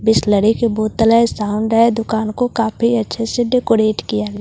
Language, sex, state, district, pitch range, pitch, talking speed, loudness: Hindi, female, Bihar, Katihar, 215-230 Hz, 225 Hz, 205 wpm, -16 LUFS